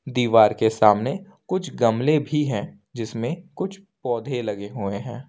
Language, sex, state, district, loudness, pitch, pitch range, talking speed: Hindi, male, Jharkhand, Ranchi, -22 LUFS, 125 Hz, 110-155 Hz, 150 wpm